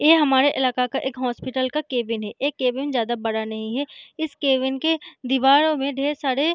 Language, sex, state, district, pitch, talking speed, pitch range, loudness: Hindi, female, Bihar, Sitamarhi, 265 Hz, 210 wpm, 250-290 Hz, -22 LUFS